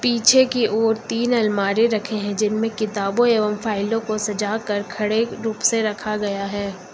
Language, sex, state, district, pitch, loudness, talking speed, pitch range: Hindi, female, Uttar Pradesh, Lucknow, 215 Hz, -20 LUFS, 165 wpm, 210-225 Hz